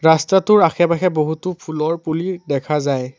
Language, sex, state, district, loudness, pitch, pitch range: Assamese, male, Assam, Sonitpur, -17 LUFS, 160 Hz, 150-180 Hz